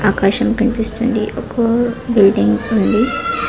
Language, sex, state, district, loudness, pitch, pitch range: Telugu, female, Telangana, Karimnagar, -15 LUFS, 230 Hz, 210-245 Hz